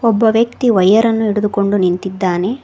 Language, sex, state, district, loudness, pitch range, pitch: Kannada, female, Karnataka, Koppal, -14 LUFS, 190-230 Hz, 210 Hz